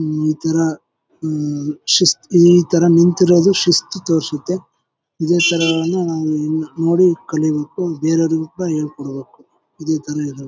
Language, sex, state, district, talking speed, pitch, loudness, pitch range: Kannada, male, Karnataka, Bellary, 115 wpm, 160 Hz, -16 LUFS, 155-175 Hz